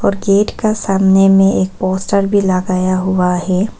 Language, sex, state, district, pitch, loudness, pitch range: Hindi, female, Arunachal Pradesh, Papum Pare, 195 Hz, -14 LUFS, 185-200 Hz